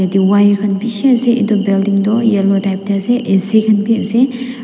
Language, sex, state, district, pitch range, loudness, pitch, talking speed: Nagamese, female, Nagaland, Dimapur, 195-230 Hz, -13 LUFS, 210 Hz, 205 wpm